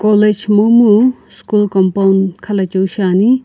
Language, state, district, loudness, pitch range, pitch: Sumi, Nagaland, Kohima, -12 LUFS, 190-215 Hz, 205 Hz